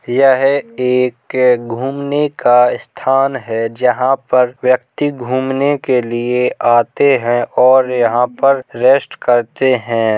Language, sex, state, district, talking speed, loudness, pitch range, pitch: Hindi, male, Uttar Pradesh, Hamirpur, 125 wpm, -14 LUFS, 120-135 Hz, 125 Hz